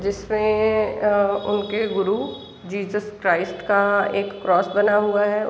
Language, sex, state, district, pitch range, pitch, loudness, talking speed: Hindi, female, Bihar, East Champaran, 195-210 Hz, 200 Hz, -21 LUFS, 120 wpm